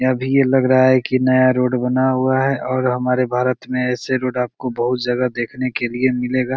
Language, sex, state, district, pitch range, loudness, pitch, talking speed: Hindi, male, Bihar, Begusarai, 125-130 Hz, -18 LUFS, 130 Hz, 230 wpm